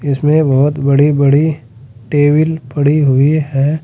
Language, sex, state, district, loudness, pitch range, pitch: Hindi, male, Uttar Pradesh, Saharanpur, -12 LUFS, 140-150 Hz, 145 Hz